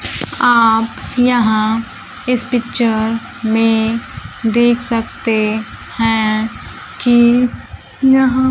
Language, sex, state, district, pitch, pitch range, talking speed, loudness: Hindi, female, Bihar, Kaimur, 230 Hz, 225-245 Hz, 70 wpm, -15 LUFS